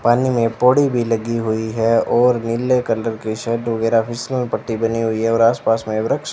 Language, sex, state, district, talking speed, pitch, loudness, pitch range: Hindi, male, Rajasthan, Bikaner, 225 wpm, 115 Hz, -18 LUFS, 115-120 Hz